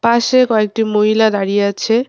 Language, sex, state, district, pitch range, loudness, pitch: Bengali, female, West Bengal, Cooch Behar, 210-230 Hz, -14 LUFS, 220 Hz